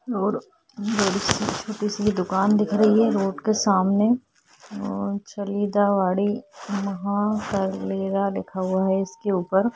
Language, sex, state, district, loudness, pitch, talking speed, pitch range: Hindi, female, Chhattisgarh, Korba, -23 LUFS, 200 Hz, 110 wpm, 195-210 Hz